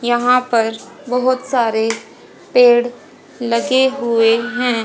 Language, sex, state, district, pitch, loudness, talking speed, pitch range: Hindi, female, Haryana, Jhajjar, 240 Hz, -15 LUFS, 100 wpm, 230-250 Hz